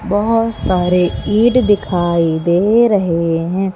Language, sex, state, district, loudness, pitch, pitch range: Hindi, female, Madhya Pradesh, Umaria, -14 LUFS, 185 Hz, 175-215 Hz